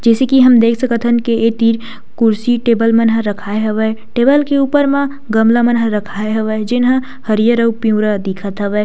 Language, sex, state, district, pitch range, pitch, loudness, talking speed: Chhattisgarhi, female, Chhattisgarh, Sukma, 215-245 Hz, 230 Hz, -14 LUFS, 195 wpm